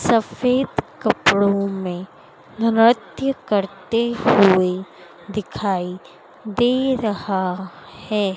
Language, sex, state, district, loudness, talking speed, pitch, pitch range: Hindi, female, Madhya Pradesh, Dhar, -20 LUFS, 70 wpm, 205 Hz, 190-235 Hz